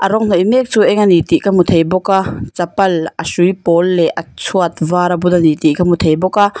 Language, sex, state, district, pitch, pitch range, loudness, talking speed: Mizo, female, Mizoram, Aizawl, 180 Hz, 165-195 Hz, -13 LUFS, 280 wpm